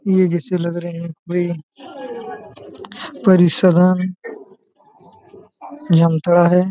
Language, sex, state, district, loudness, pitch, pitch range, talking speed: Hindi, male, Jharkhand, Jamtara, -16 LUFS, 180 Hz, 175-225 Hz, 80 wpm